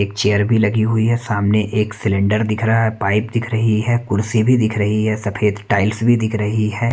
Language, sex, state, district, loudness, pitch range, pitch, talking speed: Hindi, male, Haryana, Rohtak, -17 LUFS, 105-115 Hz, 110 Hz, 235 wpm